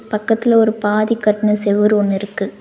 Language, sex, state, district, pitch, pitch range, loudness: Tamil, female, Tamil Nadu, Nilgiris, 210 Hz, 210-220 Hz, -16 LUFS